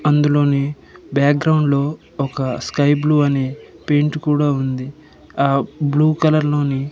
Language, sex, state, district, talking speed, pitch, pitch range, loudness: Telugu, male, Andhra Pradesh, Manyam, 120 wpm, 145 Hz, 140-150 Hz, -18 LUFS